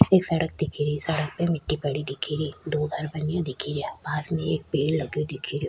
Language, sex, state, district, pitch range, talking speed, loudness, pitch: Rajasthani, female, Rajasthan, Churu, 145-160 Hz, 230 wpm, -27 LUFS, 150 Hz